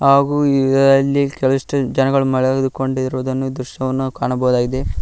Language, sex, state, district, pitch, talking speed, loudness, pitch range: Kannada, male, Karnataka, Koppal, 135 Hz, 95 wpm, -17 LUFS, 130-135 Hz